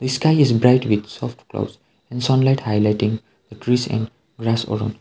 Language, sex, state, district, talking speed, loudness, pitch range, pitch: English, male, Sikkim, Gangtok, 180 wpm, -20 LUFS, 110-130 Hz, 115 Hz